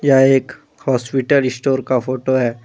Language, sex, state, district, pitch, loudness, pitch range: Hindi, male, Jharkhand, Deoghar, 130 Hz, -17 LUFS, 130-135 Hz